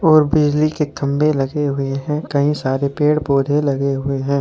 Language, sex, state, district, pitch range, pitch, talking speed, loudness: Hindi, male, Jharkhand, Deoghar, 140-150 Hz, 145 Hz, 190 wpm, -18 LUFS